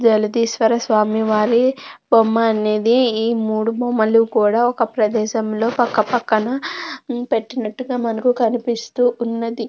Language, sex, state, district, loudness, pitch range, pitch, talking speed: Telugu, female, Andhra Pradesh, Krishna, -18 LUFS, 220-245 Hz, 230 Hz, 110 wpm